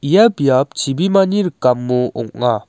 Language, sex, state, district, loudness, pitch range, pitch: Garo, male, Meghalaya, West Garo Hills, -15 LUFS, 125-190 Hz, 135 Hz